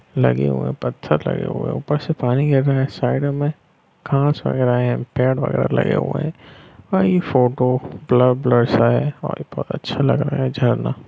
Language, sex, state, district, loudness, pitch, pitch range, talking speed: Hindi, male, Bihar, Lakhisarai, -19 LUFS, 130 Hz, 125-145 Hz, 205 wpm